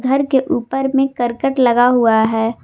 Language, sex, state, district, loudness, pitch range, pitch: Hindi, female, Jharkhand, Garhwa, -15 LUFS, 235-270 Hz, 250 Hz